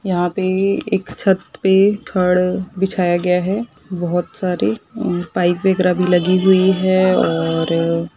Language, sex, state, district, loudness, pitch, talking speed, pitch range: Hindi, female, Maharashtra, Sindhudurg, -17 LUFS, 185 Hz, 140 wpm, 175-190 Hz